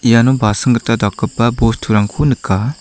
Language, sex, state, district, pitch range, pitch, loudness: Garo, male, Meghalaya, South Garo Hills, 105-125 Hz, 115 Hz, -14 LUFS